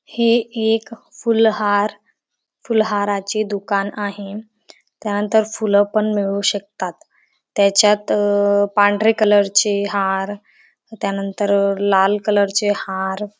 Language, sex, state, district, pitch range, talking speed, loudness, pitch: Marathi, female, Maharashtra, Dhule, 200-215 Hz, 110 wpm, -18 LUFS, 205 Hz